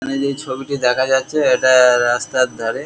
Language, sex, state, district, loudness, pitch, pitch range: Bengali, male, West Bengal, Kolkata, -16 LUFS, 130 Hz, 125-140 Hz